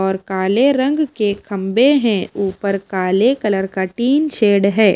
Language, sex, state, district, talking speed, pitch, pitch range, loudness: Hindi, female, Himachal Pradesh, Shimla, 145 wpm, 200 Hz, 190-250 Hz, -16 LUFS